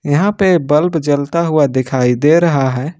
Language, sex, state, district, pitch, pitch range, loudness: Hindi, male, Jharkhand, Ranchi, 150 Hz, 140-170 Hz, -13 LUFS